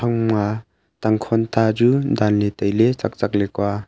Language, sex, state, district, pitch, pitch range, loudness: Wancho, male, Arunachal Pradesh, Longding, 110 Hz, 100-115 Hz, -19 LUFS